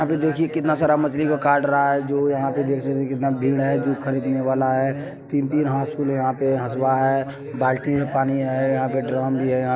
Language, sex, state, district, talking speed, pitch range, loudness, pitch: Maithili, male, Bihar, Supaul, 240 wpm, 130-145 Hz, -21 LUFS, 135 Hz